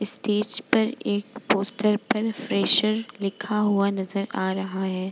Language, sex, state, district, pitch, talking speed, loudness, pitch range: Hindi, female, Bihar, Vaishali, 205 Hz, 140 wpm, -23 LUFS, 195-220 Hz